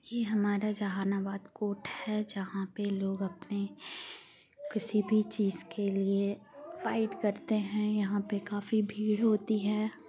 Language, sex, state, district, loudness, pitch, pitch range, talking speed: Hindi, female, Bihar, Gaya, -33 LUFS, 210 Hz, 200-215 Hz, 135 wpm